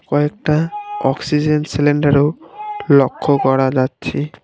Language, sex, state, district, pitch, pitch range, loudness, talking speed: Bengali, male, West Bengal, Alipurduar, 145 Hz, 140-155 Hz, -16 LUFS, 80 wpm